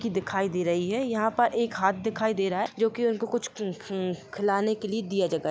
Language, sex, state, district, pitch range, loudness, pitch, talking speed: Hindi, female, Jharkhand, Jamtara, 190-225 Hz, -27 LUFS, 210 Hz, 240 wpm